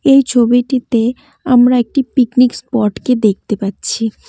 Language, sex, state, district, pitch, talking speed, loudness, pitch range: Bengali, female, West Bengal, Cooch Behar, 245 Hz, 110 wpm, -13 LUFS, 225-260 Hz